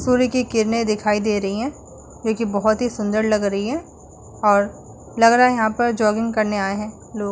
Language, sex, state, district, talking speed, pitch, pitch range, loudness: Hindi, female, Uttar Pradesh, Muzaffarnagar, 215 wpm, 220 Hz, 210-235 Hz, -20 LUFS